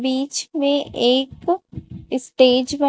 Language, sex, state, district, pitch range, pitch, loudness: Hindi, female, Chhattisgarh, Raipur, 255-285 Hz, 270 Hz, -19 LUFS